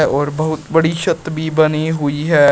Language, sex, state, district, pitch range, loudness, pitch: Hindi, male, Uttar Pradesh, Shamli, 150-160 Hz, -16 LUFS, 155 Hz